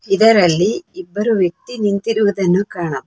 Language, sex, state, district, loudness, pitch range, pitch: Kannada, female, Karnataka, Bangalore, -16 LUFS, 180-225 Hz, 205 Hz